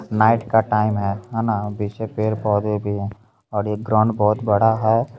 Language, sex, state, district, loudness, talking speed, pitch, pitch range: Hindi, male, Bihar, Begusarai, -20 LUFS, 175 wpm, 110 Hz, 105-110 Hz